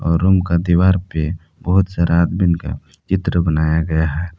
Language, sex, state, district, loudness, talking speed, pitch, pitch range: Hindi, male, Jharkhand, Palamu, -17 LUFS, 180 wpm, 85 Hz, 80-90 Hz